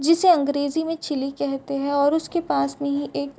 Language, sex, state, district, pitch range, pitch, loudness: Hindi, female, Bihar, Supaul, 265-320 Hz, 285 Hz, -22 LUFS